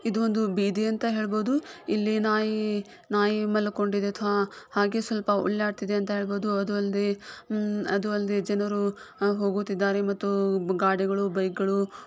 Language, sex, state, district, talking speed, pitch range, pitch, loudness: Kannada, female, Karnataka, Shimoga, 130 wpm, 200-215 Hz, 205 Hz, -27 LUFS